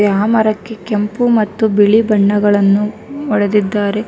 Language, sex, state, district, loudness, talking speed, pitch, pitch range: Kannada, female, Karnataka, Bangalore, -13 LUFS, 105 wpm, 210 Hz, 205-220 Hz